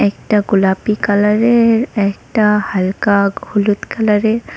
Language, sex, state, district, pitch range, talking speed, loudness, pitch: Bengali, female, West Bengal, Cooch Behar, 200-220 Hz, 90 wpm, -14 LUFS, 210 Hz